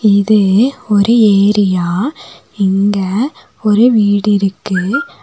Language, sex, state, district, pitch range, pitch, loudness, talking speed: Tamil, female, Tamil Nadu, Nilgiris, 195-225 Hz, 205 Hz, -12 LUFS, 80 wpm